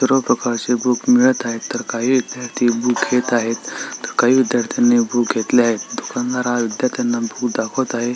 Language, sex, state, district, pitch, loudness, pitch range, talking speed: Marathi, male, Maharashtra, Sindhudurg, 125 Hz, -18 LUFS, 120-130 Hz, 170 wpm